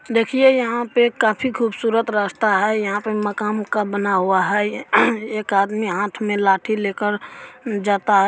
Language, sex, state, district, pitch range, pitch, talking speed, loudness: Maithili, female, Bihar, Supaul, 205-225 Hz, 210 Hz, 165 wpm, -19 LUFS